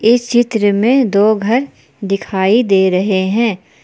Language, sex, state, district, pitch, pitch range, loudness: Hindi, female, Jharkhand, Palamu, 210 Hz, 195-235 Hz, -13 LUFS